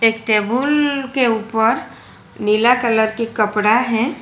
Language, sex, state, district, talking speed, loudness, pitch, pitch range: Hindi, female, Gujarat, Valsad, 130 wpm, -17 LUFS, 230 Hz, 220-250 Hz